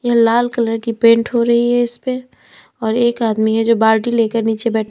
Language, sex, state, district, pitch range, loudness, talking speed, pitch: Hindi, female, Uttar Pradesh, Lalitpur, 225-240 Hz, -15 LUFS, 210 wpm, 230 Hz